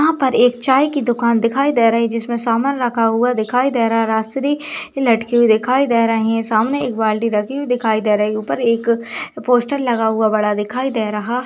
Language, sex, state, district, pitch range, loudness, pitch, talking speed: Hindi, female, Chhattisgarh, Balrampur, 225-260 Hz, -17 LUFS, 235 Hz, 215 wpm